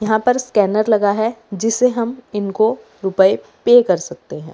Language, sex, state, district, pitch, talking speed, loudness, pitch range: Hindi, female, Uttar Pradesh, Lalitpur, 215 Hz, 170 wpm, -17 LUFS, 195-235 Hz